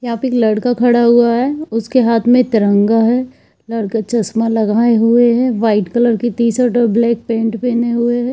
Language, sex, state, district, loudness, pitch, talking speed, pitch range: Hindi, female, Jharkhand, Jamtara, -14 LUFS, 235 Hz, 210 wpm, 225-240 Hz